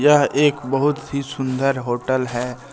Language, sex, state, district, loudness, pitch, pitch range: Hindi, male, Jharkhand, Deoghar, -20 LUFS, 135 Hz, 130-145 Hz